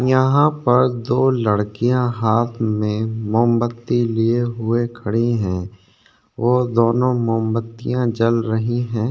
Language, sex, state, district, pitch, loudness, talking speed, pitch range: Hindi, male, Chhattisgarh, Korba, 115 Hz, -19 LUFS, 110 wpm, 110-120 Hz